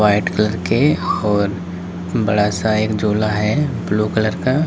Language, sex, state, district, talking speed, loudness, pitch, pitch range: Hindi, male, Uttar Pradesh, Lalitpur, 155 wpm, -18 LUFS, 105 Hz, 100-110 Hz